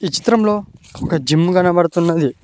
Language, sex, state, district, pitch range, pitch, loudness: Telugu, male, Telangana, Mahabubabad, 155-185 Hz, 170 Hz, -16 LUFS